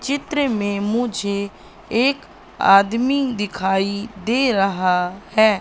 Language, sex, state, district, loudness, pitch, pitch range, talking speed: Hindi, female, Madhya Pradesh, Katni, -19 LUFS, 210 Hz, 195-245 Hz, 95 wpm